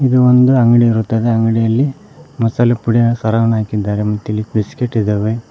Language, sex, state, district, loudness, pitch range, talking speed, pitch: Kannada, male, Karnataka, Koppal, -14 LUFS, 110-120 Hz, 140 wpm, 115 Hz